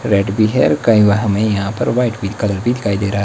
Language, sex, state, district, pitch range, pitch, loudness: Hindi, male, Himachal Pradesh, Shimla, 100-115 Hz, 105 Hz, -15 LUFS